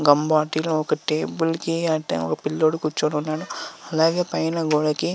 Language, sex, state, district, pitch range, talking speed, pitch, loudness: Telugu, male, Andhra Pradesh, Visakhapatnam, 150-165 Hz, 150 wpm, 155 Hz, -23 LUFS